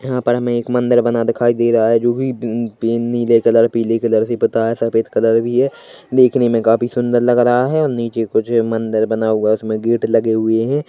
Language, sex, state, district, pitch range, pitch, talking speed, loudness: Hindi, male, Chhattisgarh, Korba, 115-120 Hz, 115 Hz, 240 wpm, -16 LUFS